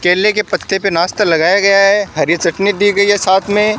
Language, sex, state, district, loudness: Hindi, male, Rajasthan, Bikaner, -12 LUFS